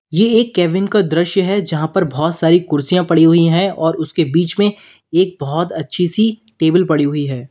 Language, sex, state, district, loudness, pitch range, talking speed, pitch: Hindi, male, Uttar Pradesh, Lalitpur, -15 LUFS, 160-190 Hz, 210 wpm, 170 Hz